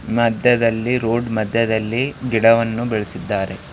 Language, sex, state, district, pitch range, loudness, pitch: Kannada, male, Karnataka, Raichur, 110-120 Hz, -18 LUFS, 115 Hz